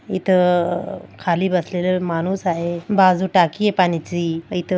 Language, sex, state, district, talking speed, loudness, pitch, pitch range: Marathi, female, Maharashtra, Aurangabad, 140 wpm, -19 LUFS, 180 Hz, 175-190 Hz